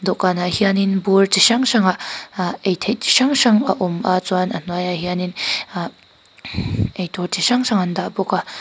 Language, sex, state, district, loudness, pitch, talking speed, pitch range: Mizo, female, Mizoram, Aizawl, -18 LUFS, 190 Hz, 200 wpm, 180-215 Hz